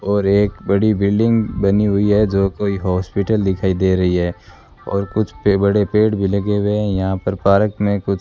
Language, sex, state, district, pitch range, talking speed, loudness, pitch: Hindi, male, Rajasthan, Bikaner, 95-105 Hz, 205 wpm, -17 LUFS, 100 Hz